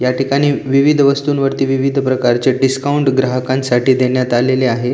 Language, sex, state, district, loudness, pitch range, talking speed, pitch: Marathi, male, Maharashtra, Aurangabad, -14 LUFS, 125-135 Hz, 135 wpm, 130 Hz